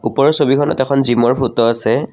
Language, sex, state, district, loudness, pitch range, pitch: Assamese, male, Assam, Kamrup Metropolitan, -14 LUFS, 120-135 Hz, 130 Hz